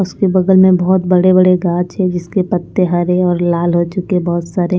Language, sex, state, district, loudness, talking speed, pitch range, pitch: Hindi, female, Punjab, Pathankot, -13 LUFS, 225 wpm, 175-185 Hz, 180 Hz